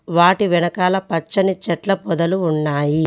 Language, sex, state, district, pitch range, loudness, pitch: Telugu, female, Telangana, Mahabubabad, 165-190 Hz, -18 LUFS, 175 Hz